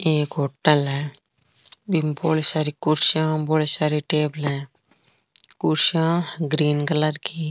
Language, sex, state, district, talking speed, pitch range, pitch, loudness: Marwari, female, Rajasthan, Nagaur, 120 wpm, 145-155 Hz, 150 Hz, -20 LUFS